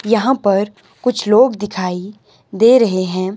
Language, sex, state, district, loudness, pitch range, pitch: Hindi, male, Himachal Pradesh, Shimla, -15 LUFS, 190-230 Hz, 205 Hz